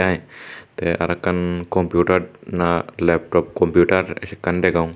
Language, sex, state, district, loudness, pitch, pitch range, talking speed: Chakma, male, Tripura, Dhalai, -20 LUFS, 90 Hz, 85-90 Hz, 120 wpm